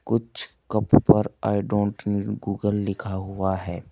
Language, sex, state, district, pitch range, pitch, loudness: Hindi, male, Uttar Pradesh, Saharanpur, 95-105 Hz, 100 Hz, -24 LUFS